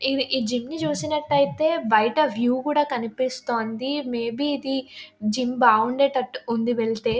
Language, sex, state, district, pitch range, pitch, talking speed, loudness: Telugu, female, Telangana, Nalgonda, 235-285 Hz, 255 Hz, 125 wpm, -23 LUFS